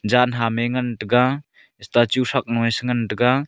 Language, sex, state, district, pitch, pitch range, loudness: Wancho, male, Arunachal Pradesh, Longding, 120 Hz, 115-125 Hz, -20 LUFS